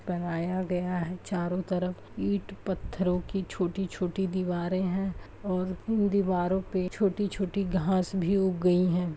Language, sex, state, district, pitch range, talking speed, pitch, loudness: Hindi, male, Uttar Pradesh, Etah, 180-195 Hz, 135 wpm, 185 Hz, -29 LUFS